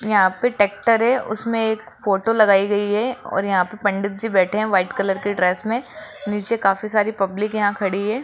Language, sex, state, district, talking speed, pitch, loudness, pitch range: Hindi, female, Rajasthan, Jaipur, 210 wpm, 205 Hz, -20 LUFS, 195-225 Hz